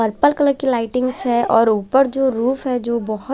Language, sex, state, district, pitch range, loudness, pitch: Hindi, female, Chandigarh, Chandigarh, 230-270 Hz, -18 LUFS, 250 Hz